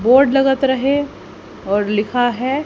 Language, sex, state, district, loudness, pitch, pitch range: Hindi, female, Haryana, Jhajjar, -16 LUFS, 260 Hz, 235-270 Hz